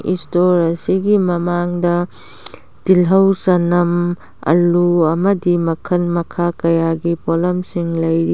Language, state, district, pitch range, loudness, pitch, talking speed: Manipuri, Manipur, Imphal West, 170-180 Hz, -16 LUFS, 175 Hz, 95 wpm